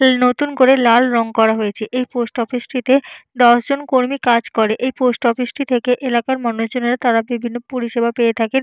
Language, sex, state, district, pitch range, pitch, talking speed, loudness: Bengali, female, Jharkhand, Jamtara, 235-255 Hz, 245 Hz, 175 wpm, -16 LUFS